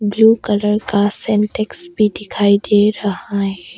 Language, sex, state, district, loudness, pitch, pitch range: Hindi, female, Arunachal Pradesh, Longding, -16 LUFS, 205 Hz, 200-215 Hz